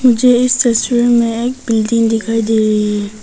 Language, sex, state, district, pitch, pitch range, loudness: Hindi, female, Arunachal Pradesh, Papum Pare, 230 Hz, 220-245 Hz, -13 LUFS